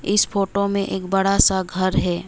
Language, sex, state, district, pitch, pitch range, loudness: Hindi, female, West Bengal, Alipurduar, 195 Hz, 185-200 Hz, -19 LUFS